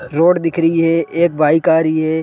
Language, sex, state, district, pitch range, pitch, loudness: Hindi, male, Bihar, Sitamarhi, 160-165 Hz, 165 Hz, -14 LUFS